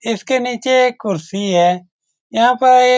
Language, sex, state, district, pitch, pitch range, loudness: Hindi, male, Bihar, Saran, 230 Hz, 180-250 Hz, -15 LUFS